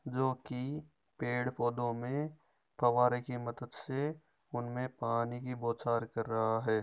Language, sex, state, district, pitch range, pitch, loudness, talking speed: Marwari, male, Rajasthan, Nagaur, 120-130 Hz, 125 Hz, -36 LUFS, 130 wpm